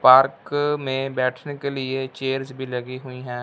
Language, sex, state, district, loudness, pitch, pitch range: Hindi, male, Punjab, Fazilka, -23 LUFS, 130 Hz, 130-135 Hz